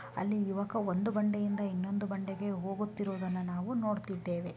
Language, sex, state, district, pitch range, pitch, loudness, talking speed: Kannada, female, Karnataka, Dharwad, 185-205 Hz, 200 Hz, -35 LUFS, 120 wpm